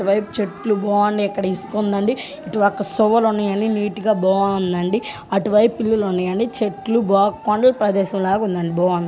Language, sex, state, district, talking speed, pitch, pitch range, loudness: Telugu, female, Andhra Pradesh, Guntur, 170 wpm, 205 Hz, 195-215 Hz, -19 LUFS